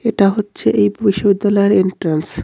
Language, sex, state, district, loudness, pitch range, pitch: Bengali, male, West Bengal, Cooch Behar, -15 LUFS, 165-205 Hz, 200 Hz